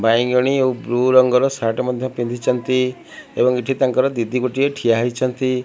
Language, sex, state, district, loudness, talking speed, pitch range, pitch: Odia, male, Odisha, Malkangiri, -18 LUFS, 160 wpm, 120-130 Hz, 125 Hz